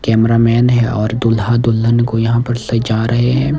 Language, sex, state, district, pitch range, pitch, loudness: Hindi, male, Himachal Pradesh, Shimla, 115-120 Hz, 115 Hz, -14 LUFS